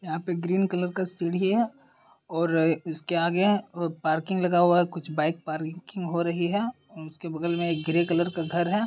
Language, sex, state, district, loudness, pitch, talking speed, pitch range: Hindi, male, Uttar Pradesh, Deoria, -26 LUFS, 170 Hz, 210 wpm, 165-185 Hz